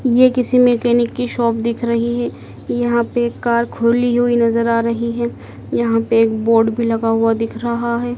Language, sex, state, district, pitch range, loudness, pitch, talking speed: Hindi, female, Madhya Pradesh, Dhar, 230-240 Hz, -17 LUFS, 235 Hz, 205 wpm